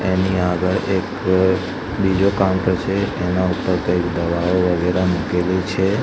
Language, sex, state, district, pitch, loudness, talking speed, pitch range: Gujarati, male, Gujarat, Gandhinagar, 90 Hz, -19 LUFS, 130 wpm, 90-95 Hz